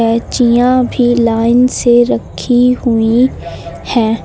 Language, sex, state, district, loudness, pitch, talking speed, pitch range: Hindi, female, Uttar Pradesh, Lucknow, -11 LUFS, 240 Hz, 100 wpm, 230-245 Hz